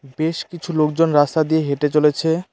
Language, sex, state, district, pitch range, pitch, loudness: Bengali, male, West Bengal, Cooch Behar, 150-165 Hz, 155 Hz, -18 LUFS